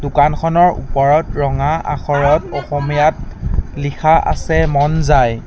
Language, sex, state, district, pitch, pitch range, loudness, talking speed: Assamese, male, Assam, Sonitpur, 145 Hz, 140-160 Hz, -15 LUFS, 100 wpm